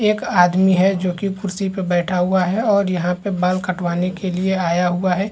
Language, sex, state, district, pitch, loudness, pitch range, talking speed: Hindi, male, Chhattisgarh, Balrampur, 185 Hz, -18 LUFS, 180-195 Hz, 235 wpm